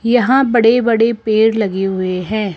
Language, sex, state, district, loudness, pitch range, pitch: Hindi, female, Rajasthan, Jaipur, -14 LUFS, 195-235 Hz, 225 Hz